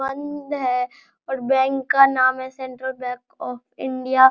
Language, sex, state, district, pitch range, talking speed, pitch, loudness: Hindi, male, Bihar, Araria, 255-270 Hz, 165 wpm, 260 Hz, -22 LUFS